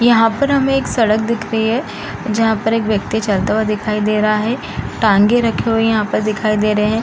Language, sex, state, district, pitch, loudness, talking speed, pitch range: Hindi, female, Bihar, East Champaran, 220 Hz, -16 LUFS, 230 wpm, 215-230 Hz